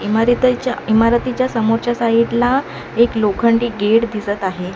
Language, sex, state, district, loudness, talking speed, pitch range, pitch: Marathi, female, Maharashtra, Mumbai Suburban, -16 LUFS, 125 wpm, 220-240 Hz, 230 Hz